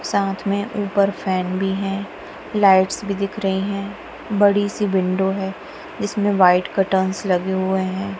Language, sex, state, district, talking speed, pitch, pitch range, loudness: Hindi, female, Punjab, Kapurthala, 155 wpm, 195 Hz, 190-200 Hz, -20 LUFS